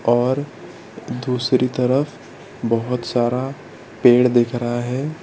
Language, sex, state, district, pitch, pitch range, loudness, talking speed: Hindi, male, Gujarat, Valsad, 125 Hz, 120-130 Hz, -19 LUFS, 105 wpm